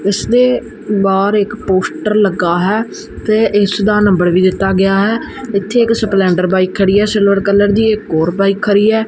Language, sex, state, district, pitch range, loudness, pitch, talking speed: Punjabi, male, Punjab, Kapurthala, 195-215 Hz, -13 LUFS, 200 Hz, 180 wpm